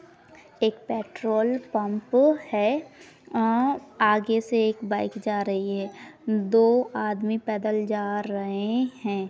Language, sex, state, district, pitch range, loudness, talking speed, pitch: Hindi, female, Maharashtra, Pune, 210-240 Hz, -25 LUFS, 115 wpm, 220 Hz